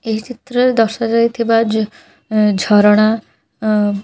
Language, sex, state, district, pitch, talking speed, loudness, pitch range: Odia, female, Odisha, Khordha, 220 Hz, 120 wpm, -15 LUFS, 210-230 Hz